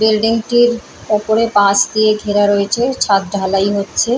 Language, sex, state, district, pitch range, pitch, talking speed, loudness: Bengali, female, West Bengal, Paschim Medinipur, 200-230 Hz, 215 Hz, 145 wpm, -14 LUFS